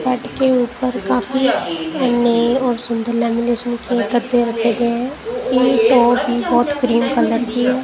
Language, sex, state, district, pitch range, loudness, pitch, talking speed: Hindi, female, Punjab, Kapurthala, 235-255 Hz, -17 LUFS, 245 Hz, 160 wpm